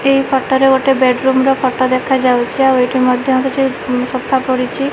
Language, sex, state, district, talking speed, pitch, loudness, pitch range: Odia, female, Odisha, Malkangiri, 170 wpm, 260 Hz, -13 LUFS, 255-270 Hz